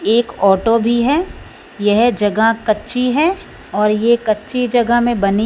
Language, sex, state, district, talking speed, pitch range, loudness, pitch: Hindi, female, Punjab, Fazilka, 155 wpm, 210-240 Hz, -15 LUFS, 230 Hz